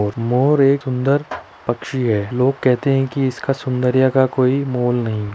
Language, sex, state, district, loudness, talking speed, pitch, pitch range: Hindi, male, Uttar Pradesh, Budaun, -18 LUFS, 180 wpm, 130 Hz, 120-135 Hz